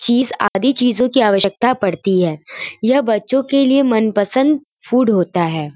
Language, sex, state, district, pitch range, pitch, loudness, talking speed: Hindi, female, Uttar Pradesh, Varanasi, 195-265 Hz, 240 Hz, -15 LUFS, 155 wpm